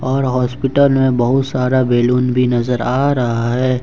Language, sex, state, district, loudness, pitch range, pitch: Hindi, male, Jharkhand, Ranchi, -15 LUFS, 125-130 Hz, 125 Hz